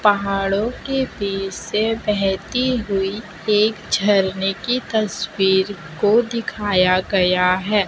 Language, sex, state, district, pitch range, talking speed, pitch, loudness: Hindi, female, Chhattisgarh, Raipur, 195-220 Hz, 105 wpm, 200 Hz, -19 LUFS